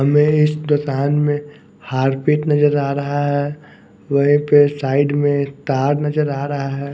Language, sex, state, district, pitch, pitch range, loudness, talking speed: Hindi, male, Bihar, West Champaran, 145 Hz, 140-150 Hz, -17 LUFS, 165 wpm